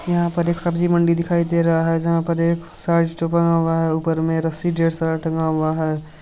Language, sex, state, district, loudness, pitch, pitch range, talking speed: Hindi, male, Bihar, Supaul, -20 LUFS, 165 Hz, 160-170 Hz, 195 wpm